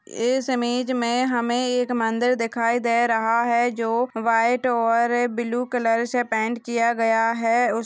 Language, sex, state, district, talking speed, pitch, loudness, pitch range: Hindi, female, Bihar, Purnia, 160 wpm, 235 Hz, -22 LUFS, 230-245 Hz